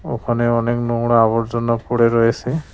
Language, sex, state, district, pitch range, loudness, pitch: Bengali, male, West Bengal, Cooch Behar, 115-120 Hz, -17 LUFS, 115 Hz